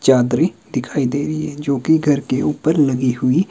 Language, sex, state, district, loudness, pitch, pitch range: Hindi, male, Himachal Pradesh, Shimla, -18 LUFS, 140 Hz, 130-150 Hz